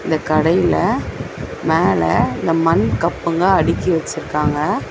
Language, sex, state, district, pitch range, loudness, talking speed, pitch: Tamil, female, Tamil Nadu, Chennai, 160-175 Hz, -17 LUFS, 95 wpm, 165 Hz